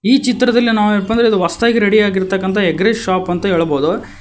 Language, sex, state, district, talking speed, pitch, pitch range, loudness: Kannada, male, Karnataka, Koppal, 185 wpm, 205 Hz, 185-230 Hz, -14 LUFS